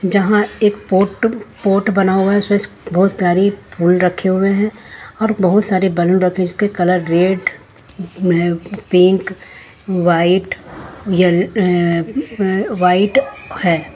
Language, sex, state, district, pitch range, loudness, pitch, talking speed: Hindi, female, Jharkhand, Ranchi, 180-205 Hz, -15 LUFS, 190 Hz, 125 wpm